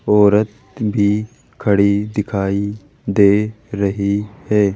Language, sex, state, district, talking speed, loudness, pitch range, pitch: Hindi, male, Rajasthan, Jaipur, 90 wpm, -17 LUFS, 100-105 Hz, 105 Hz